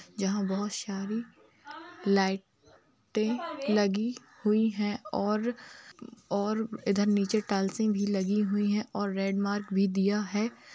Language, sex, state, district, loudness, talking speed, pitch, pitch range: Hindi, female, Bihar, Darbhanga, -30 LUFS, 125 wpm, 205 Hz, 200-220 Hz